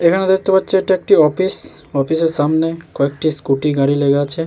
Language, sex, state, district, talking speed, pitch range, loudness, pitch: Bengali, male, West Bengal, Jalpaiguri, 175 wpm, 145-185 Hz, -16 LUFS, 160 Hz